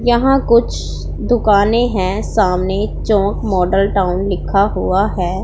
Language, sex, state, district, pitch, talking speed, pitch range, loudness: Hindi, female, Punjab, Pathankot, 200 Hz, 120 wpm, 190-230 Hz, -15 LUFS